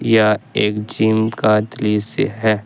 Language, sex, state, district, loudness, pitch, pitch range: Hindi, male, Jharkhand, Ranchi, -17 LUFS, 110 Hz, 105-110 Hz